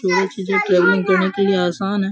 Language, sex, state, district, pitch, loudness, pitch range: Hindi, male, Bihar, Samastipur, 195 Hz, -17 LUFS, 190-195 Hz